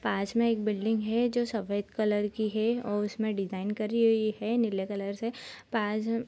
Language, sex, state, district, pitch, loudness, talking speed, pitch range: Hindi, female, Bihar, Sitamarhi, 215 Hz, -30 LUFS, 200 wpm, 205-230 Hz